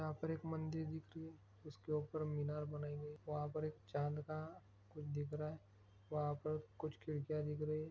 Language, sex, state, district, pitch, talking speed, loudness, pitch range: Hindi, male, Bihar, Begusarai, 150 Hz, 220 wpm, -45 LUFS, 145-155 Hz